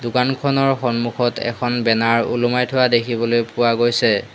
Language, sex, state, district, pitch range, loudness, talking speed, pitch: Assamese, male, Assam, Hailakandi, 115-125 Hz, -18 LUFS, 125 wpm, 120 Hz